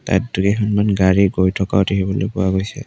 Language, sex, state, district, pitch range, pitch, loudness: Assamese, male, Assam, Kamrup Metropolitan, 95-100 Hz, 95 Hz, -17 LUFS